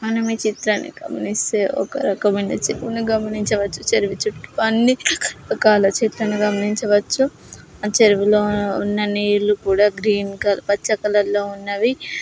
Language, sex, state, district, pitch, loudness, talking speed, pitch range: Telugu, female, Andhra Pradesh, Srikakulam, 210 Hz, -19 LUFS, 125 wpm, 205-225 Hz